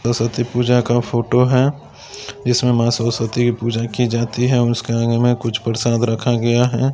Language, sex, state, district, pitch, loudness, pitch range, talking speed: Maithili, male, Bihar, Samastipur, 120 Hz, -17 LUFS, 115-125 Hz, 180 wpm